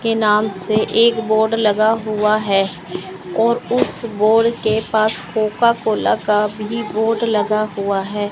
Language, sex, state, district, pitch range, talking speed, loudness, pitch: Hindi, female, Chandigarh, Chandigarh, 210-225 Hz, 150 wpm, -17 LUFS, 215 Hz